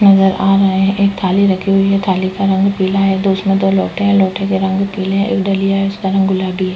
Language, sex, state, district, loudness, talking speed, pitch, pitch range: Hindi, female, Uttar Pradesh, Etah, -14 LUFS, 265 wpm, 195 Hz, 190-195 Hz